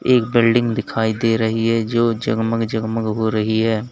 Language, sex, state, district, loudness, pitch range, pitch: Hindi, male, Uttar Pradesh, Lalitpur, -18 LUFS, 110-115 Hz, 115 Hz